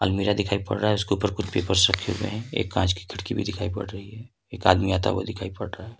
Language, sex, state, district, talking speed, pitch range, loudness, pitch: Hindi, male, Jharkhand, Ranchi, 290 wpm, 95-105 Hz, -25 LUFS, 100 Hz